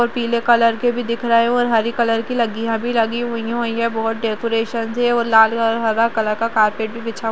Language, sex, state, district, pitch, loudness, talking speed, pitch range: Hindi, female, Uttarakhand, Tehri Garhwal, 230 Hz, -18 LUFS, 245 wpm, 225-235 Hz